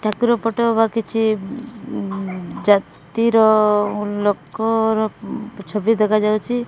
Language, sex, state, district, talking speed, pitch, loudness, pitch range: Odia, female, Odisha, Malkangiri, 80 wpm, 220 Hz, -19 LUFS, 205-225 Hz